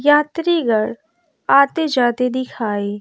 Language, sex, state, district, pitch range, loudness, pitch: Hindi, female, Bihar, West Champaran, 230-315 Hz, -17 LUFS, 265 Hz